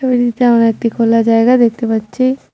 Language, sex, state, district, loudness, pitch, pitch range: Bengali, female, West Bengal, Cooch Behar, -13 LUFS, 235 Hz, 230-250 Hz